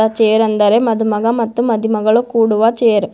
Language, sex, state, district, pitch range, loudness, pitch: Kannada, female, Karnataka, Bidar, 215-230 Hz, -14 LUFS, 225 Hz